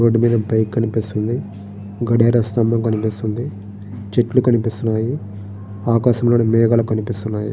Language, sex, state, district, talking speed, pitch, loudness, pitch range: Telugu, male, Andhra Pradesh, Srikakulam, 95 wpm, 115 Hz, -18 LUFS, 105-115 Hz